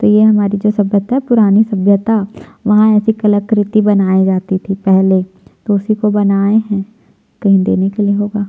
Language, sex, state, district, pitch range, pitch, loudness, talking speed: Hindi, female, Chhattisgarh, Jashpur, 195-215 Hz, 205 Hz, -12 LUFS, 170 wpm